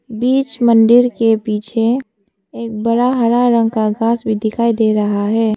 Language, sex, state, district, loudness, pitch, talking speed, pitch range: Hindi, female, Arunachal Pradesh, Papum Pare, -15 LUFS, 225 Hz, 160 wpm, 220-240 Hz